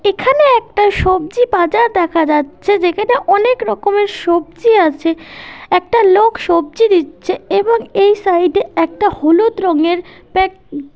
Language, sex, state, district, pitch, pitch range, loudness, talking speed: Bengali, female, West Bengal, North 24 Parganas, 380 Hz, 340-430 Hz, -13 LUFS, 125 wpm